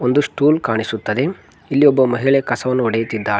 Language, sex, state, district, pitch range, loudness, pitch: Kannada, male, Karnataka, Koppal, 115-140 Hz, -17 LUFS, 125 Hz